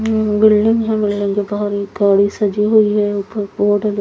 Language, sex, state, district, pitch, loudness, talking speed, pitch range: Hindi, female, Haryana, Charkhi Dadri, 205 Hz, -15 LUFS, 165 wpm, 205-215 Hz